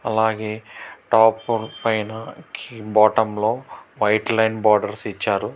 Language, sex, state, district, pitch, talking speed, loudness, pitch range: Telugu, male, Telangana, Hyderabad, 110 Hz, 110 wpm, -20 LUFS, 105-115 Hz